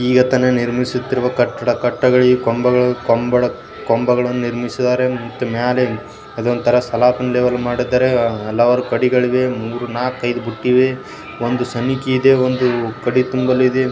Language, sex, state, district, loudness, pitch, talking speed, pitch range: Kannada, male, Karnataka, Bijapur, -16 LUFS, 125 Hz, 115 wpm, 120-125 Hz